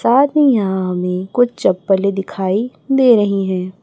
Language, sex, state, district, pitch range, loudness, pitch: Hindi, female, Chhattisgarh, Raipur, 185-245 Hz, -15 LUFS, 195 Hz